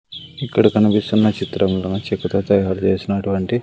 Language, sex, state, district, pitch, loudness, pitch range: Telugu, male, Andhra Pradesh, Sri Satya Sai, 100 Hz, -18 LUFS, 95-105 Hz